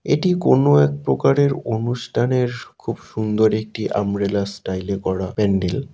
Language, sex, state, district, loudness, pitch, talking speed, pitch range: Bengali, male, West Bengal, Jalpaiguri, -20 LUFS, 105 Hz, 120 wpm, 95-120 Hz